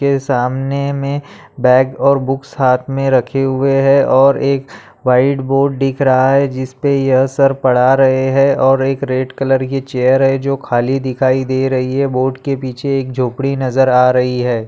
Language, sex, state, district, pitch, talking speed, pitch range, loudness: Hindi, male, Bihar, Darbhanga, 135 Hz, 190 wpm, 130-135 Hz, -14 LUFS